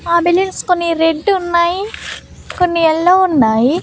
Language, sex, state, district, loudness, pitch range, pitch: Telugu, female, Andhra Pradesh, Annamaya, -14 LUFS, 325-365 Hz, 345 Hz